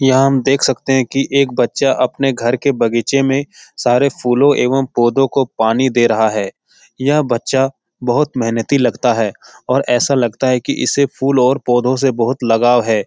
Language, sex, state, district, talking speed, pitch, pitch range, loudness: Hindi, male, Bihar, Jahanabad, 195 wpm, 130 Hz, 120-135 Hz, -15 LUFS